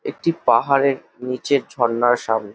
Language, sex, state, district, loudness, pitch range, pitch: Bengali, male, West Bengal, Jhargram, -19 LUFS, 120-140 Hz, 125 Hz